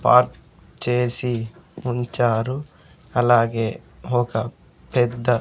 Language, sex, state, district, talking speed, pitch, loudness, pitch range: Telugu, male, Andhra Pradesh, Sri Satya Sai, 65 wpm, 120 Hz, -22 LUFS, 115-125 Hz